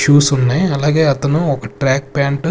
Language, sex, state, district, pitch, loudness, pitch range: Telugu, male, Andhra Pradesh, Sri Satya Sai, 140 Hz, -15 LUFS, 135-150 Hz